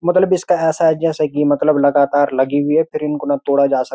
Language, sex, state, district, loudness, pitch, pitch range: Hindi, male, Uttarakhand, Uttarkashi, -16 LUFS, 150 Hz, 140-160 Hz